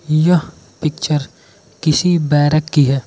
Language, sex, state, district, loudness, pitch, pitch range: Hindi, male, Arunachal Pradesh, Lower Dibang Valley, -16 LUFS, 150 Hz, 140-160 Hz